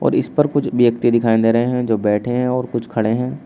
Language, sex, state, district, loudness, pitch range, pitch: Hindi, male, Uttar Pradesh, Shamli, -17 LUFS, 115-125 Hz, 120 Hz